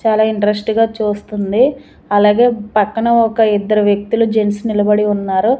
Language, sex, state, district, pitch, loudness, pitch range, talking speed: Telugu, female, Andhra Pradesh, Manyam, 215 Hz, -14 LUFS, 205-225 Hz, 130 wpm